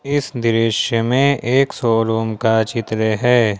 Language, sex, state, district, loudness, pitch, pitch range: Hindi, male, Jharkhand, Ranchi, -17 LUFS, 115 Hz, 110-125 Hz